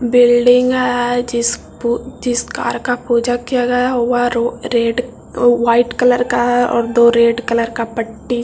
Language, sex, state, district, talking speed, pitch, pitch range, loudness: Hindi, male, Bihar, Jahanabad, 170 wpm, 245 Hz, 235-245 Hz, -15 LUFS